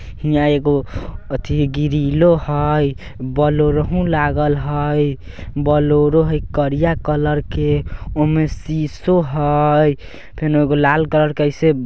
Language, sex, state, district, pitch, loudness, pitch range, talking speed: Bajjika, male, Bihar, Vaishali, 150 Hz, -17 LUFS, 140-150 Hz, 130 wpm